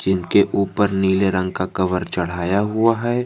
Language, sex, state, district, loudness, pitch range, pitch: Hindi, male, Jharkhand, Garhwa, -19 LUFS, 95-105 Hz, 95 Hz